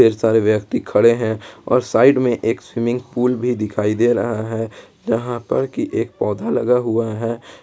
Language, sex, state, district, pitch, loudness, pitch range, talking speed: Hindi, male, Jharkhand, Ranchi, 115 Hz, -18 LUFS, 110-120 Hz, 180 wpm